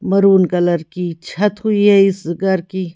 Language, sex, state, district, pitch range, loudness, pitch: Hindi, female, Haryana, Charkhi Dadri, 175-195 Hz, -15 LUFS, 190 Hz